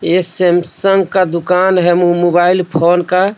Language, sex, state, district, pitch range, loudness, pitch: Hindi, male, Jharkhand, Deoghar, 175-185 Hz, -12 LUFS, 180 Hz